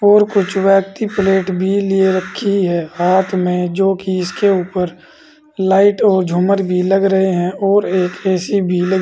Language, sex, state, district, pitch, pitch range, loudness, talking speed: Hindi, male, Uttar Pradesh, Saharanpur, 190 Hz, 185-200 Hz, -15 LUFS, 175 wpm